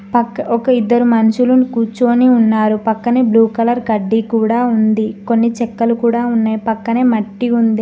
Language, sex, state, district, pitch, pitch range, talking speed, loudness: Telugu, female, Telangana, Mahabubabad, 230 Hz, 220-240 Hz, 140 wpm, -14 LUFS